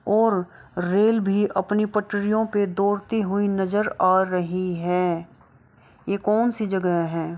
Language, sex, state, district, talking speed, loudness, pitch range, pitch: Hindi, female, Bihar, Kishanganj, 130 wpm, -23 LUFS, 180-210 Hz, 200 Hz